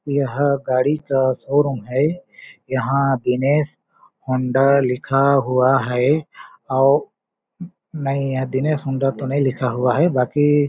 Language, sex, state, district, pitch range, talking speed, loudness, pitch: Hindi, male, Chhattisgarh, Balrampur, 130-145 Hz, 125 wpm, -19 LUFS, 135 Hz